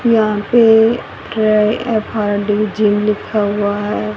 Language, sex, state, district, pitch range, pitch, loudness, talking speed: Hindi, female, Haryana, Rohtak, 205-220 Hz, 210 Hz, -15 LUFS, 100 wpm